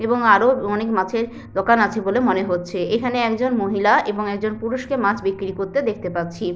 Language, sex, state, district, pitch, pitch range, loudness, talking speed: Bengali, female, West Bengal, Paschim Medinipur, 210 Hz, 195-235 Hz, -20 LUFS, 190 wpm